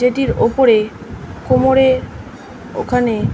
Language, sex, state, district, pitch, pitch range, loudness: Bengali, female, West Bengal, North 24 Parganas, 250 Hz, 230-265 Hz, -15 LUFS